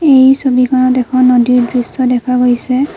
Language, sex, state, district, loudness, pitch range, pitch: Assamese, female, Assam, Kamrup Metropolitan, -11 LUFS, 250-260 Hz, 255 Hz